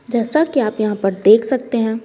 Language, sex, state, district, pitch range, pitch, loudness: Hindi, female, Bihar, Patna, 215-250 Hz, 230 Hz, -16 LUFS